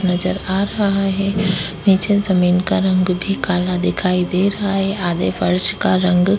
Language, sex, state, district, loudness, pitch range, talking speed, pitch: Hindi, female, Bihar, Vaishali, -17 LUFS, 180-195 Hz, 180 wpm, 185 Hz